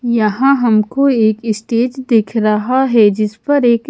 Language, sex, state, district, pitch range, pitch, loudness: Hindi, female, Haryana, Charkhi Dadri, 215-260 Hz, 230 Hz, -14 LUFS